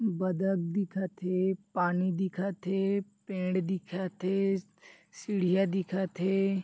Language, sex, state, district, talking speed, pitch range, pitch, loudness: Chhattisgarhi, male, Chhattisgarh, Bilaspur, 110 wpm, 185-195 Hz, 190 Hz, -31 LUFS